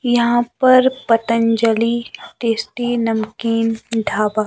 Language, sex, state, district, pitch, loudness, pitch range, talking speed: Hindi, male, Himachal Pradesh, Shimla, 230 Hz, -17 LUFS, 225-240 Hz, 80 wpm